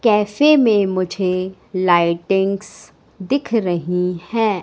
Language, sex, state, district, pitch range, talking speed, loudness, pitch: Hindi, female, Madhya Pradesh, Katni, 180-220 Hz, 90 wpm, -18 LUFS, 195 Hz